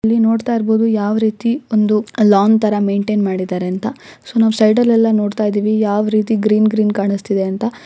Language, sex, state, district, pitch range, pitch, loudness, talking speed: Kannada, female, Karnataka, Gulbarga, 205-225 Hz, 215 Hz, -15 LUFS, 175 wpm